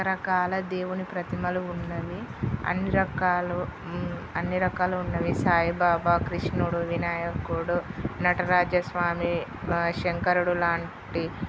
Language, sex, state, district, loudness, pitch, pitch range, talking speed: Telugu, male, Telangana, Karimnagar, -27 LUFS, 180 Hz, 170-180 Hz, 85 wpm